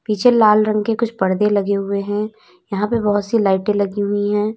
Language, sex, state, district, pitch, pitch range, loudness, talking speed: Hindi, female, Uttar Pradesh, Lalitpur, 210 Hz, 200-215 Hz, -17 LUFS, 225 wpm